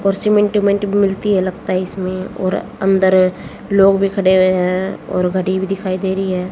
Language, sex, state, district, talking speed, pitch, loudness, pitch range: Hindi, female, Haryana, Jhajjar, 200 wpm, 190 Hz, -16 LUFS, 185-195 Hz